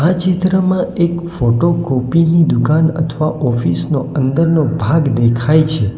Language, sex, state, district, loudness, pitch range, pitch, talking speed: Gujarati, male, Gujarat, Valsad, -14 LUFS, 135-170 Hz, 155 Hz, 130 wpm